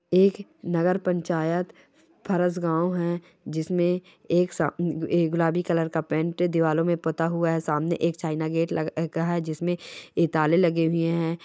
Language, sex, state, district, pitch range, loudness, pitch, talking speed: Hindi, male, Chhattisgarh, Bastar, 165-175 Hz, -25 LUFS, 170 Hz, 150 wpm